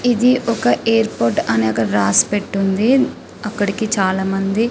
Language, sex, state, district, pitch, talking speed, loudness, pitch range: Telugu, female, Telangana, Karimnagar, 205 Hz, 155 wpm, -17 LUFS, 190-230 Hz